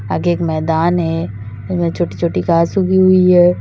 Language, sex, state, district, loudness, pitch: Hindi, female, Uttar Pradesh, Lalitpur, -14 LUFS, 165 Hz